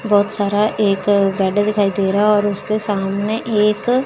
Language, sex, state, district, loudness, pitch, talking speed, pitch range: Hindi, female, Chandigarh, Chandigarh, -17 LUFS, 205 Hz, 175 wpm, 200-210 Hz